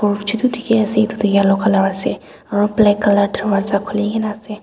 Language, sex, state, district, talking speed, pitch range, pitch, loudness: Nagamese, female, Nagaland, Dimapur, 170 wpm, 200-215 Hz, 205 Hz, -16 LUFS